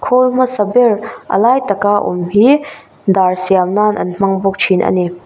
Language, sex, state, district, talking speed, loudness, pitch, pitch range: Mizo, female, Mizoram, Aizawl, 205 wpm, -13 LUFS, 205 Hz, 190-245 Hz